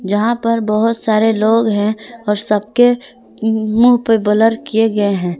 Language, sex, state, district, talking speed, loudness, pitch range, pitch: Hindi, female, Jharkhand, Palamu, 155 wpm, -15 LUFS, 210-230 Hz, 220 Hz